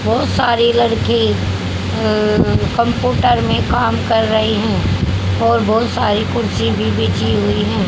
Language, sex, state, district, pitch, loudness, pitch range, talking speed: Hindi, female, Haryana, Charkhi Dadri, 105 Hz, -15 LUFS, 95-110 Hz, 150 wpm